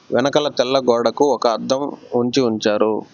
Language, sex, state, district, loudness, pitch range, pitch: Telugu, male, Telangana, Hyderabad, -18 LUFS, 110-125 Hz, 120 Hz